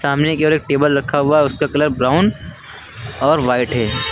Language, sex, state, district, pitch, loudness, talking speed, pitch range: Hindi, male, Uttar Pradesh, Lucknow, 140 Hz, -16 LUFS, 175 wpm, 125-150 Hz